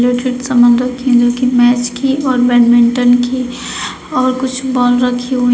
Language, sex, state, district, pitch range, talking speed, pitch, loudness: Hindi, female, Uttar Pradesh, Shamli, 245-255 Hz, 175 wpm, 245 Hz, -12 LUFS